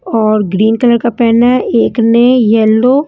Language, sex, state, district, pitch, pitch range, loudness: Hindi, female, Punjab, Kapurthala, 235 Hz, 220-245 Hz, -10 LUFS